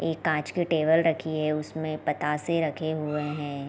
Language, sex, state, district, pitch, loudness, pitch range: Hindi, female, Chhattisgarh, Raigarh, 155 Hz, -27 LUFS, 150-160 Hz